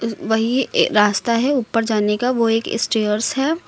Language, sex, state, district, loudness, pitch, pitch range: Hindi, female, Uttar Pradesh, Lucknow, -18 LUFS, 230 Hz, 215-250 Hz